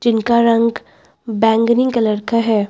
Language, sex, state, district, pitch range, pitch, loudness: Hindi, female, Uttar Pradesh, Lucknow, 220-235 Hz, 230 Hz, -15 LUFS